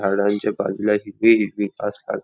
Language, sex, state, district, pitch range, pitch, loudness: Marathi, male, Maharashtra, Nagpur, 100-105 Hz, 105 Hz, -20 LUFS